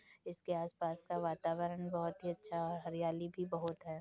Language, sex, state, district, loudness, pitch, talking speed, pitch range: Hindi, female, Uttar Pradesh, Hamirpur, -41 LUFS, 170 Hz, 180 wpm, 165-175 Hz